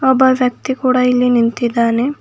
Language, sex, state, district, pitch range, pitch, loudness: Kannada, female, Karnataka, Bidar, 240-260 Hz, 250 Hz, -14 LUFS